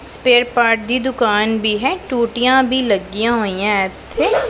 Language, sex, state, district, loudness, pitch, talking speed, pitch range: Punjabi, female, Punjab, Pathankot, -16 LUFS, 235 Hz, 145 wpm, 210-255 Hz